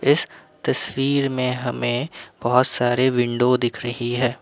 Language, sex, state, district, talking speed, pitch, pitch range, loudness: Hindi, male, Assam, Kamrup Metropolitan, 135 wpm, 125 Hz, 120-130 Hz, -21 LUFS